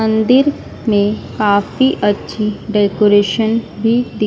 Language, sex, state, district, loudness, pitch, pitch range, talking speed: Hindi, female, Madhya Pradesh, Dhar, -15 LUFS, 215 Hz, 205-230 Hz, 85 wpm